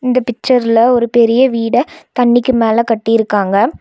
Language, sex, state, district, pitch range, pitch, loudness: Tamil, female, Tamil Nadu, Nilgiris, 230-250 Hz, 240 Hz, -12 LUFS